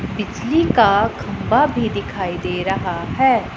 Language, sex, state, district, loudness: Hindi, female, Punjab, Pathankot, -18 LUFS